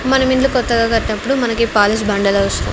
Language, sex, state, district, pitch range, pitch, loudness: Telugu, female, Andhra Pradesh, Sri Satya Sai, 210-260 Hz, 230 Hz, -15 LUFS